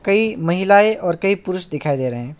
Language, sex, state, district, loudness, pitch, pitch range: Hindi, male, West Bengal, Alipurduar, -17 LUFS, 185 Hz, 150-200 Hz